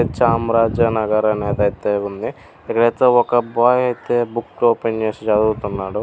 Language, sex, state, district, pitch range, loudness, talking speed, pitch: Telugu, male, Andhra Pradesh, Srikakulam, 105-120 Hz, -18 LUFS, 90 wpm, 115 Hz